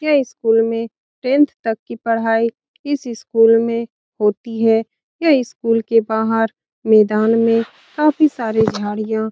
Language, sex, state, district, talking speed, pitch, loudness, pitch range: Hindi, female, Bihar, Saran, 140 wpm, 230 Hz, -17 LUFS, 220-240 Hz